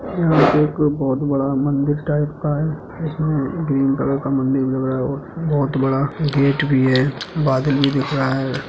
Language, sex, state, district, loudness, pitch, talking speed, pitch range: Hindi, male, Uttar Pradesh, Budaun, -19 LUFS, 140 Hz, 195 wpm, 135-150 Hz